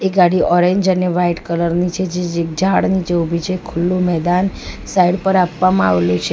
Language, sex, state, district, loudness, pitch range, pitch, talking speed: Gujarati, female, Gujarat, Valsad, -16 LUFS, 170-185 Hz, 180 Hz, 190 wpm